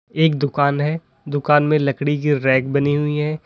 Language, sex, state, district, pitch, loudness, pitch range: Hindi, male, Uttar Pradesh, Lalitpur, 145 Hz, -18 LUFS, 140-150 Hz